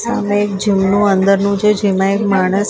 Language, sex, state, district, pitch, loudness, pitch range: Gujarati, female, Maharashtra, Mumbai Suburban, 200 Hz, -14 LUFS, 195-205 Hz